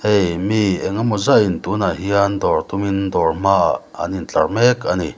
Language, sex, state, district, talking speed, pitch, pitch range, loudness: Mizo, male, Mizoram, Aizawl, 185 wpm, 100 Hz, 95-105 Hz, -18 LUFS